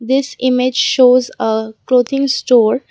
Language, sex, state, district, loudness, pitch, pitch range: English, female, Assam, Kamrup Metropolitan, -14 LUFS, 255 Hz, 245-265 Hz